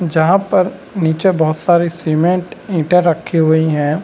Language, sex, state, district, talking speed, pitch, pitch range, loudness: Hindi, male, Bihar, Saran, 150 wpm, 170 Hz, 160-180 Hz, -14 LUFS